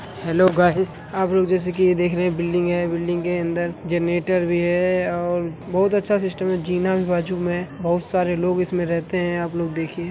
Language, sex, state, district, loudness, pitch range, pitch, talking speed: Hindi, male, Bihar, Saran, -21 LUFS, 175-185 Hz, 175 Hz, 225 wpm